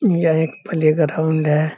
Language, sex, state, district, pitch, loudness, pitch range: Hindi, male, Bihar, Saharsa, 160 Hz, -18 LUFS, 155-165 Hz